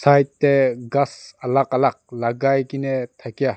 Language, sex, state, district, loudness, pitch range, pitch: Nagamese, male, Nagaland, Dimapur, -20 LUFS, 125-140 Hz, 135 Hz